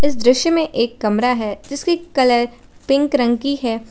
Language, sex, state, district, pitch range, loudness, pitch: Hindi, female, Jharkhand, Garhwa, 235-285 Hz, -18 LUFS, 250 Hz